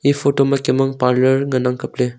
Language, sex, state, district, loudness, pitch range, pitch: Wancho, male, Arunachal Pradesh, Longding, -17 LUFS, 125-135 Hz, 130 Hz